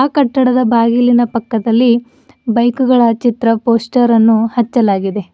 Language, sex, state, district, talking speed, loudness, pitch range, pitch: Kannada, female, Karnataka, Bidar, 90 wpm, -12 LUFS, 230-245 Hz, 235 Hz